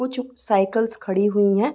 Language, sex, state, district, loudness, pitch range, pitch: Hindi, female, Uttar Pradesh, Varanasi, -21 LUFS, 200-250 Hz, 220 Hz